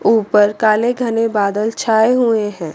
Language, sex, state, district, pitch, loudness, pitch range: Hindi, female, Chandigarh, Chandigarh, 220 Hz, -15 LUFS, 210-230 Hz